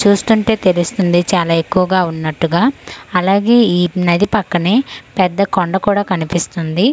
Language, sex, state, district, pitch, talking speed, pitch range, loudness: Telugu, female, Andhra Pradesh, Manyam, 185 Hz, 115 wpm, 175-205 Hz, -14 LUFS